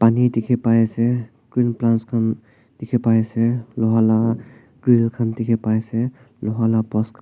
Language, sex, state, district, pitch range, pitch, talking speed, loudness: Nagamese, male, Nagaland, Kohima, 115-120 Hz, 115 Hz, 165 wpm, -20 LUFS